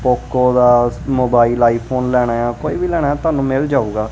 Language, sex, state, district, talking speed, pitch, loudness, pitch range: Punjabi, male, Punjab, Kapurthala, 160 wpm, 125 Hz, -15 LUFS, 120-140 Hz